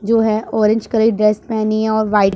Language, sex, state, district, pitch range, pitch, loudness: Hindi, female, Punjab, Pathankot, 215-220 Hz, 220 Hz, -16 LUFS